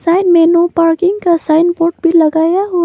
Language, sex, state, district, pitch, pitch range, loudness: Hindi, female, Arunachal Pradesh, Papum Pare, 340 Hz, 330-350 Hz, -11 LUFS